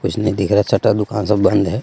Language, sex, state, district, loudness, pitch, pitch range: Hindi, male, Jharkhand, Deoghar, -16 LUFS, 105 Hz, 105-110 Hz